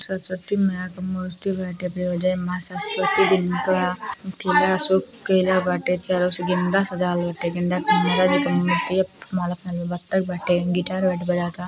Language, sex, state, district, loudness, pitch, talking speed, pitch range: Bhojpuri, female, Uttar Pradesh, Deoria, -21 LUFS, 180 Hz, 130 wpm, 180-185 Hz